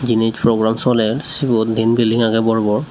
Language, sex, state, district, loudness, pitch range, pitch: Chakma, male, Tripura, Unakoti, -16 LUFS, 110-120 Hz, 115 Hz